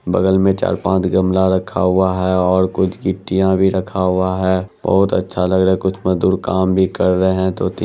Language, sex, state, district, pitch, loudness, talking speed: Hindi, male, Bihar, Araria, 95 Hz, -16 LUFS, 205 wpm